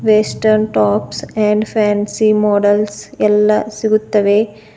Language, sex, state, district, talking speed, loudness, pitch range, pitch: Kannada, female, Karnataka, Bidar, 90 wpm, -14 LUFS, 210-215 Hz, 210 Hz